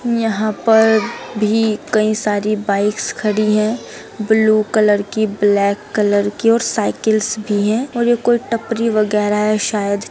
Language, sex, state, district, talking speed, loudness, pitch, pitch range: Hindi, female, Bihar, Saran, 155 wpm, -16 LUFS, 215 Hz, 210-225 Hz